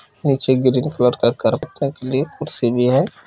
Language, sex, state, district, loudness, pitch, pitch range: Kumaoni, male, Uttarakhand, Uttarkashi, -18 LUFS, 130 Hz, 125-145 Hz